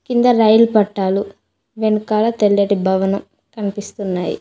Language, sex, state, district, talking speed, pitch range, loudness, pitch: Telugu, female, Telangana, Mahabubabad, 95 wpm, 200-220 Hz, -16 LUFS, 205 Hz